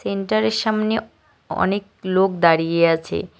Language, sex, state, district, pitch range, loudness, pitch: Bengali, male, West Bengal, Cooch Behar, 170-215 Hz, -20 LUFS, 190 Hz